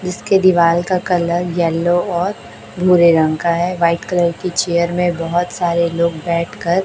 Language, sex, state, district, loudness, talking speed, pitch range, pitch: Hindi, female, Chhattisgarh, Raipur, -16 LUFS, 165 wpm, 170-180 Hz, 175 Hz